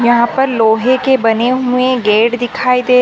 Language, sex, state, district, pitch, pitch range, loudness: Hindi, female, Maharashtra, Sindhudurg, 250 Hz, 235-255 Hz, -12 LUFS